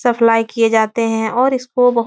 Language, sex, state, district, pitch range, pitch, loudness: Hindi, female, Uttar Pradesh, Etah, 225-245 Hz, 230 Hz, -15 LUFS